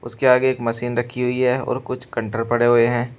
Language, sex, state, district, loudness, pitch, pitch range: Hindi, male, Uttar Pradesh, Shamli, -20 LUFS, 120 Hz, 120-125 Hz